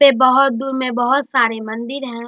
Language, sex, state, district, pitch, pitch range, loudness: Hindi, male, Bihar, Darbhanga, 255 Hz, 235-270 Hz, -16 LUFS